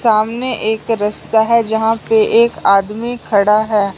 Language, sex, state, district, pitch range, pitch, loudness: Hindi, male, Punjab, Fazilka, 210-230 Hz, 220 Hz, -14 LUFS